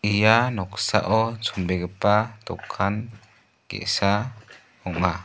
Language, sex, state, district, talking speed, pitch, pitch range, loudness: Garo, male, Meghalaya, West Garo Hills, 70 wpm, 105 Hz, 95-110 Hz, -23 LUFS